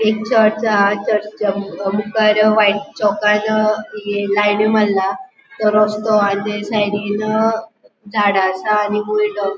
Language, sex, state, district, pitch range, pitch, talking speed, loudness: Konkani, female, Goa, North and South Goa, 205-215 Hz, 210 Hz, 140 wpm, -16 LUFS